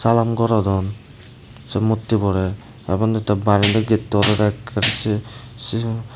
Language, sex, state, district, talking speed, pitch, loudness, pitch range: Chakma, male, Tripura, Dhalai, 125 wpm, 110 Hz, -19 LUFS, 105-115 Hz